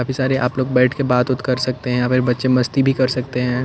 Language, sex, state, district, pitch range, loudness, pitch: Hindi, male, Chandigarh, Chandigarh, 125-130 Hz, -18 LUFS, 125 Hz